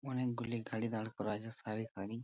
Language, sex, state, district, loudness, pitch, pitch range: Bengali, male, West Bengal, Purulia, -40 LUFS, 115 Hz, 110-120 Hz